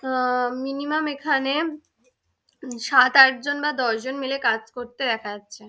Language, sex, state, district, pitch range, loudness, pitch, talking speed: Bengali, female, West Bengal, Dakshin Dinajpur, 245-280 Hz, -21 LUFS, 260 Hz, 145 wpm